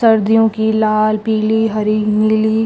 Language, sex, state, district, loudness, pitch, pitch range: Chhattisgarhi, female, Chhattisgarh, Rajnandgaon, -14 LUFS, 220 Hz, 215-220 Hz